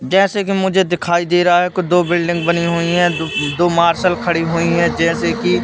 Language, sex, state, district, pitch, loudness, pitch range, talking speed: Hindi, male, Madhya Pradesh, Katni, 175 Hz, -15 LUFS, 170-180 Hz, 225 wpm